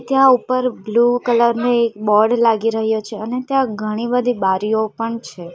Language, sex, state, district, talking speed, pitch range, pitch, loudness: Gujarati, female, Gujarat, Valsad, 185 wpm, 215-245 Hz, 230 Hz, -17 LUFS